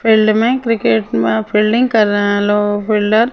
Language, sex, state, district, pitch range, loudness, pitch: Hindi, female, Punjab, Kapurthala, 205-225 Hz, -14 LUFS, 210 Hz